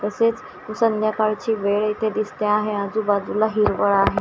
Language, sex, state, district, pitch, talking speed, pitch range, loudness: Marathi, female, Maharashtra, Washim, 215 Hz, 130 wpm, 205-220 Hz, -21 LUFS